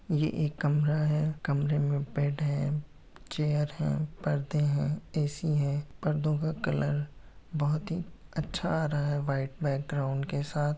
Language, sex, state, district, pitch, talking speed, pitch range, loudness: Hindi, female, Bihar, Muzaffarpur, 150 Hz, 150 wpm, 145-155 Hz, -30 LUFS